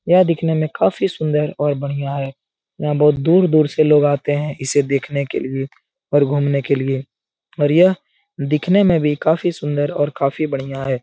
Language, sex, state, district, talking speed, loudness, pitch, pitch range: Hindi, male, Bihar, Jahanabad, 185 wpm, -18 LUFS, 145 Hz, 140-155 Hz